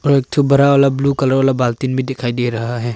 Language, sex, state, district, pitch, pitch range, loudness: Hindi, male, Arunachal Pradesh, Papum Pare, 135 Hz, 120-140 Hz, -15 LUFS